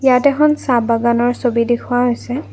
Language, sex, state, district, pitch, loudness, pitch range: Assamese, female, Assam, Kamrup Metropolitan, 245 Hz, -15 LUFS, 235-260 Hz